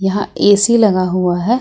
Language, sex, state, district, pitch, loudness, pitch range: Hindi, female, Jharkhand, Ranchi, 200 Hz, -13 LUFS, 185-215 Hz